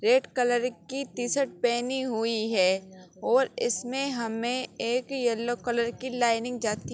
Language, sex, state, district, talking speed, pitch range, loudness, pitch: Hindi, female, Uttar Pradesh, Gorakhpur, 145 wpm, 230-260 Hz, -28 LUFS, 245 Hz